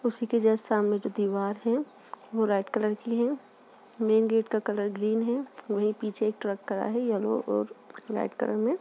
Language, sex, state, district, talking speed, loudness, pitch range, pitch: Hindi, female, Uttar Pradesh, Jalaun, 190 wpm, -28 LUFS, 205-230 Hz, 220 Hz